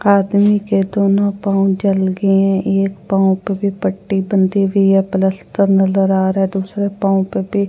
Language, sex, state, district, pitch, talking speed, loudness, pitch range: Hindi, female, Delhi, New Delhi, 195 Hz, 185 wpm, -15 LUFS, 190-200 Hz